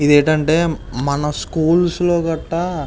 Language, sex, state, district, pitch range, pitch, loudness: Telugu, male, Andhra Pradesh, Visakhapatnam, 145-170 Hz, 160 Hz, -17 LUFS